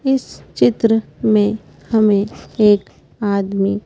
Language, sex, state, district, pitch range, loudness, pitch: Hindi, female, Madhya Pradesh, Bhopal, 200-225 Hz, -17 LUFS, 210 Hz